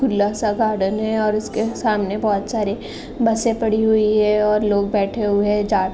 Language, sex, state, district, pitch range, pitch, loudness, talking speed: Hindi, female, Uttar Pradesh, Gorakhpur, 205-220 Hz, 210 Hz, -19 LUFS, 190 wpm